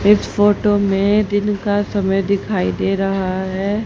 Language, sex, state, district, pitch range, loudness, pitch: Hindi, female, Haryana, Charkhi Dadri, 195-205 Hz, -17 LUFS, 200 Hz